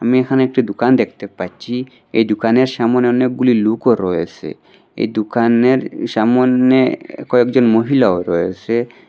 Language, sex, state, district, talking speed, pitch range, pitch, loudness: Bengali, male, Assam, Hailakandi, 120 wpm, 115-125 Hz, 120 Hz, -15 LUFS